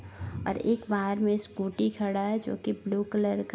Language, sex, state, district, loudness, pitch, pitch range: Hindi, female, Bihar, Gopalganj, -30 LUFS, 200 Hz, 135-210 Hz